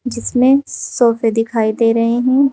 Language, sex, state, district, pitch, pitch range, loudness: Hindi, female, Uttar Pradesh, Saharanpur, 235 Hz, 230-255 Hz, -15 LUFS